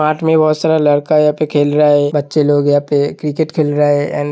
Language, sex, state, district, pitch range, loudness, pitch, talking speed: Hindi, male, Uttar Pradesh, Hamirpur, 145-155 Hz, -13 LUFS, 150 Hz, 265 wpm